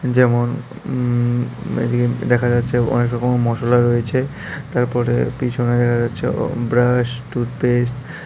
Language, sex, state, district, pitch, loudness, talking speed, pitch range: Bengali, male, Tripura, South Tripura, 120 Hz, -19 LUFS, 130 wpm, 120-125 Hz